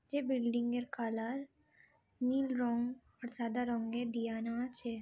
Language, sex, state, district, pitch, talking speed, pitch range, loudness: Bengali, female, West Bengal, Dakshin Dinajpur, 240 Hz, 130 wpm, 235-250 Hz, -37 LUFS